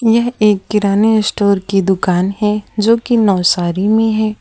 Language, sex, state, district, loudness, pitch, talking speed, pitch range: Hindi, female, Gujarat, Valsad, -14 LUFS, 210 Hz, 165 wpm, 195-220 Hz